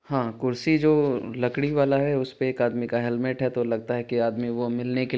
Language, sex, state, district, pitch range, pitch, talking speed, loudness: Maithili, male, Bihar, Supaul, 120-135 Hz, 125 Hz, 230 wpm, -25 LUFS